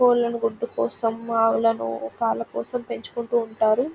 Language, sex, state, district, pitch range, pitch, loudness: Telugu, female, Telangana, Nalgonda, 215-235 Hz, 230 Hz, -24 LUFS